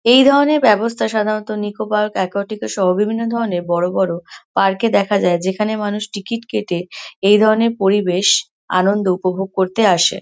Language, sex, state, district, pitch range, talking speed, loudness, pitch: Bengali, female, West Bengal, Kolkata, 190-215 Hz, 160 wpm, -17 LUFS, 205 Hz